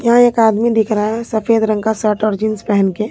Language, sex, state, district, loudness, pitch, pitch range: Hindi, female, Bihar, Katihar, -15 LUFS, 220 Hz, 215-225 Hz